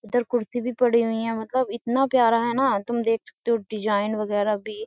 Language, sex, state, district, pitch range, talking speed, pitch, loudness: Hindi, female, Uttar Pradesh, Jyotiba Phule Nagar, 215-240 Hz, 220 wpm, 230 Hz, -23 LUFS